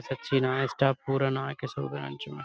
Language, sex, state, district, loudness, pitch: Hindi, male, Uttar Pradesh, Budaun, -29 LUFS, 135 Hz